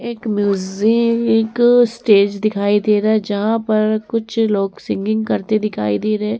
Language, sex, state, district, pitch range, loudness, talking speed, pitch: Hindi, female, Uttar Pradesh, Muzaffarnagar, 205-225 Hz, -16 LUFS, 150 wpm, 215 Hz